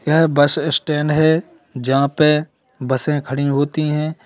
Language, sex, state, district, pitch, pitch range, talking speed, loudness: Hindi, male, Uttar Pradesh, Lalitpur, 150 Hz, 140-155 Hz, 140 wpm, -17 LUFS